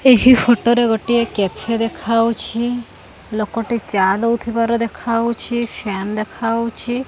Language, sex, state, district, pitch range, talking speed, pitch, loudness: Odia, female, Odisha, Khordha, 225-235 Hz, 110 wpm, 230 Hz, -18 LUFS